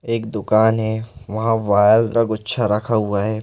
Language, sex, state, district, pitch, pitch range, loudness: Hindi, male, Chhattisgarh, Balrampur, 110 Hz, 105-115 Hz, -18 LUFS